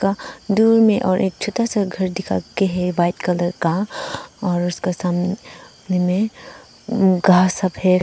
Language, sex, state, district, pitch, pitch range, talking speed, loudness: Hindi, female, Arunachal Pradesh, Papum Pare, 185 Hz, 180-210 Hz, 140 wpm, -19 LUFS